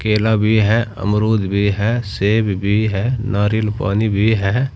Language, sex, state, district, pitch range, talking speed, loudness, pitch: Hindi, male, Uttar Pradesh, Saharanpur, 100-110 Hz, 165 wpm, -17 LUFS, 105 Hz